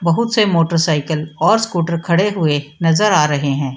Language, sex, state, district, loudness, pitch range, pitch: Hindi, female, Bihar, Samastipur, -16 LUFS, 150-180 Hz, 165 Hz